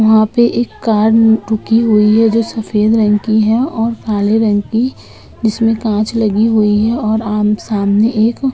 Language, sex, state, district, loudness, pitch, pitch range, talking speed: Hindi, female, Uttar Pradesh, Etah, -13 LUFS, 220 Hz, 215-225 Hz, 180 wpm